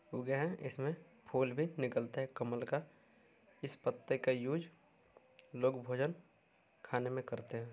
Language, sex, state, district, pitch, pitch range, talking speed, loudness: Hindi, male, Bihar, Saran, 130 Hz, 125-140 Hz, 155 wpm, -39 LUFS